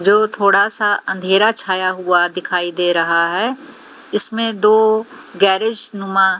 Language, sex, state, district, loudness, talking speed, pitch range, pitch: Hindi, female, Haryana, Jhajjar, -16 LUFS, 130 wpm, 185-220 Hz, 200 Hz